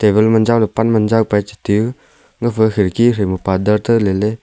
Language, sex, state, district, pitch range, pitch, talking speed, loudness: Wancho, male, Arunachal Pradesh, Longding, 105-115 Hz, 110 Hz, 215 wpm, -15 LUFS